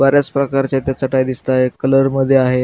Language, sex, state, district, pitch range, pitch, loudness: Marathi, male, Maharashtra, Aurangabad, 130-135 Hz, 135 Hz, -16 LUFS